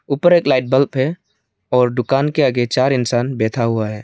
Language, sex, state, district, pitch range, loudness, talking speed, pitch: Hindi, male, Arunachal Pradesh, Lower Dibang Valley, 115-135 Hz, -16 LUFS, 210 wpm, 125 Hz